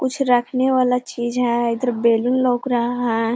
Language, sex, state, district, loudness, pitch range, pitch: Hindi, female, Bihar, Gaya, -19 LUFS, 235-255 Hz, 245 Hz